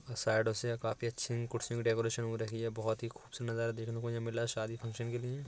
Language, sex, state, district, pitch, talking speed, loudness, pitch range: Hindi, male, Uttar Pradesh, Etah, 115 Hz, 285 wpm, -37 LUFS, 115-120 Hz